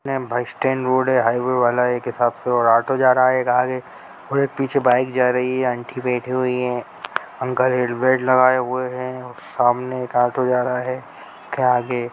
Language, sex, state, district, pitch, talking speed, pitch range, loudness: Hindi, male, Bihar, Jamui, 125 Hz, 185 wpm, 125-130 Hz, -19 LUFS